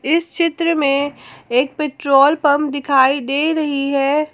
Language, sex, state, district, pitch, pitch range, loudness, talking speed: Hindi, female, Jharkhand, Ranchi, 285 Hz, 275-305 Hz, -16 LUFS, 140 wpm